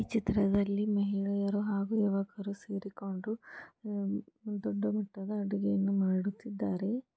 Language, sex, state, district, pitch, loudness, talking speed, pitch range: Kannada, female, Karnataka, Gulbarga, 200 Hz, -33 LUFS, 85 wpm, 200-210 Hz